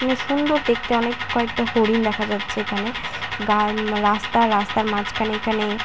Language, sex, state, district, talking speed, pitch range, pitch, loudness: Bengali, female, West Bengal, Paschim Medinipur, 125 wpm, 210-235 Hz, 220 Hz, -21 LUFS